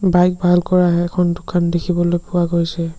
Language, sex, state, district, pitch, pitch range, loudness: Assamese, male, Assam, Sonitpur, 175 Hz, 170-180 Hz, -17 LUFS